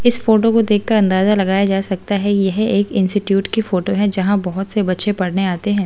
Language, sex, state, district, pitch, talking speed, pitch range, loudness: Hindi, female, Delhi, New Delhi, 200 Hz, 225 wpm, 190-210 Hz, -16 LUFS